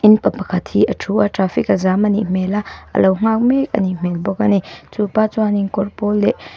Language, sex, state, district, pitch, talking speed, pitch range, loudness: Mizo, female, Mizoram, Aizawl, 205 Hz, 245 wpm, 190-215 Hz, -17 LUFS